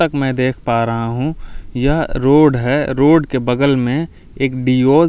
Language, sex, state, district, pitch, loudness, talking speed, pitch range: Hindi, male, Delhi, New Delhi, 130 Hz, -15 LUFS, 190 wpm, 125-145 Hz